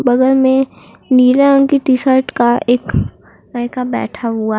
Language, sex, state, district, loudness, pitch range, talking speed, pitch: Hindi, female, Uttar Pradesh, Lucknow, -13 LUFS, 240-265 Hz, 170 wpm, 255 Hz